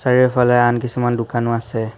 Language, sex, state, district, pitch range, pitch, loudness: Assamese, male, Assam, Hailakandi, 115-125 Hz, 120 Hz, -17 LUFS